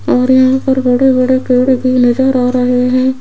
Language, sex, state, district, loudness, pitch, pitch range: Hindi, female, Rajasthan, Jaipur, -11 LUFS, 255 Hz, 250-260 Hz